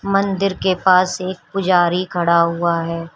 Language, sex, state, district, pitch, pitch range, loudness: Hindi, female, Uttar Pradesh, Shamli, 180 Hz, 170-190 Hz, -17 LUFS